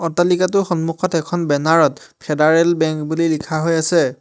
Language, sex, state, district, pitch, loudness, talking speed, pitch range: Assamese, male, Assam, Hailakandi, 165 Hz, -17 LUFS, 155 wpm, 155-175 Hz